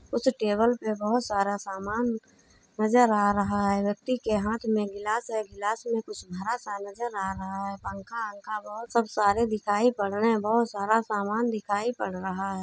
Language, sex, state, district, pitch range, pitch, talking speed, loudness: Hindi, female, Uttar Pradesh, Budaun, 200-230 Hz, 210 Hz, 190 wpm, -28 LUFS